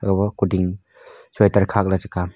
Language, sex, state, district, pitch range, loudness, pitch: Wancho, male, Arunachal Pradesh, Longding, 95-100 Hz, -20 LUFS, 95 Hz